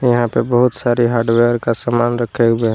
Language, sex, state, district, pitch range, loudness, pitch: Hindi, male, Jharkhand, Palamu, 115-120 Hz, -15 LUFS, 120 Hz